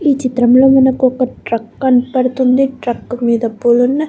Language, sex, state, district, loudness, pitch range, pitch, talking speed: Telugu, female, Andhra Pradesh, Guntur, -13 LUFS, 240-265 Hz, 255 Hz, 130 wpm